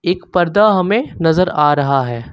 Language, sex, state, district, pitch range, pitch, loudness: Hindi, male, Uttar Pradesh, Lucknow, 145-185 Hz, 175 Hz, -14 LUFS